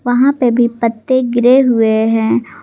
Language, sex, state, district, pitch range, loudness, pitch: Hindi, female, Jharkhand, Garhwa, 225-255 Hz, -13 LUFS, 240 Hz